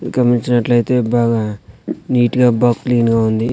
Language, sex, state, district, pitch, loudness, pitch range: Telugu, male, Andhra Pradesh, Sri Satya Sai, 120 Hz, -15 LUFS, 115-125 Hz